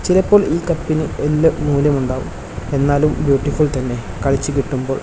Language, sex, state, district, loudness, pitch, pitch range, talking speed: Malayalam, male, Kerala, Kasaragod, -17 LUFS, 140 Hz, 130-155 Hz, 130 wpm